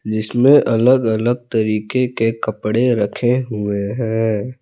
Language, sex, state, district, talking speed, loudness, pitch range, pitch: Hindi, male, Jharkhand, Palamu, 115 wpm, -17 LUFS, 110-125 Hz, 115 Hz